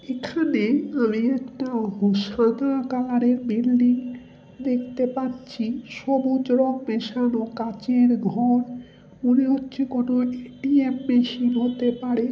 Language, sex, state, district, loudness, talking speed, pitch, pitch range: Bengali, male, West Bengal, North 24 Parganas, -23 LUFS, 95 wpm, 245 Hz, 240-260 Hz